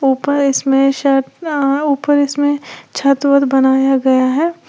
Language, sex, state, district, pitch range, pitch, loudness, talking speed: Hindi, female, Uttar Pradesh, Lalitpur, 270-290 Hz, 275 Hz, -14 LUFS, 140 wpm